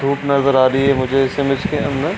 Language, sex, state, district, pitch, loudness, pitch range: Hindi, male, Bihar, Jamui, 140 Hz, -16 LUFS, 135-140 Hz